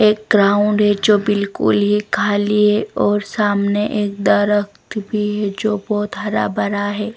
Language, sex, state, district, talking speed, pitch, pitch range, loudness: Hindi, female, Bihar, West Champaran, 160 wpm, 205 Hz, 205-210 Hz, -17 LUFS